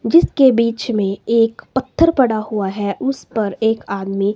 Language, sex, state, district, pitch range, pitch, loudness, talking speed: Hindi, female, Himachal Pradesh, Shimla, 200-255 Hz, 225 Hz, -17 LUFS, 165 wpm